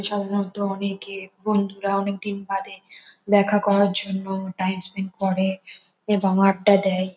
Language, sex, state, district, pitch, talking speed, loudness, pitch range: Bengali, female, West Bengal, North 24 Parganas, 195 Hz, 115 wpm, -23 LUFS, 190-200 Hz